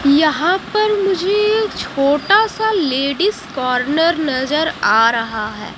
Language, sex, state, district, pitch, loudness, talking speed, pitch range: Hindi, female, Haryana, Jhajjar, 310 Hz, -16 LUFS, 115 wpm, 270-410 Hz